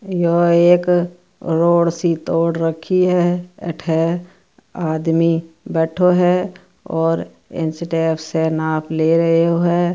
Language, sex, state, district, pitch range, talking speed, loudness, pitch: Marwari, female, Rajasthan, Churu, 165-175 Hz, 115 wpm, -17 LUFS, 170 Hz